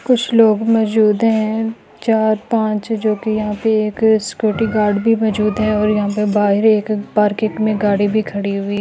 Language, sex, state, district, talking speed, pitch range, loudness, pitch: Hindi, female, Delhi, New Delhi, 190 wpm, 210-220 Hz, -16 LUFS, 215 Hz